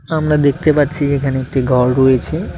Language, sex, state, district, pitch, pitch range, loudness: Bengali, male, West Bengal, Cooch Behar, 140 Hz, 130-150 Hz, -14 LUFS